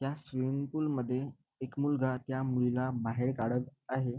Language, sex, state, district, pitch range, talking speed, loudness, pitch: Marathi, male, Maharashtra, Nagpur, 125-140 Hz, 155 wpm, -34 LUFS, 130 Hz